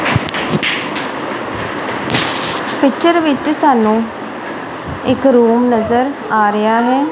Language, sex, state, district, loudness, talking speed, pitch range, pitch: Punjabi, female, Punjab, Kapurthala, -15 LUFS, 75 wpm, 230-285 Hz, 250 Hz